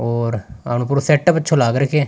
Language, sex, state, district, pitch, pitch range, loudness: Rajasthani, male, Rajasthan, Nagaur, 135 Hz, 120-150 Hz, -17 LUFS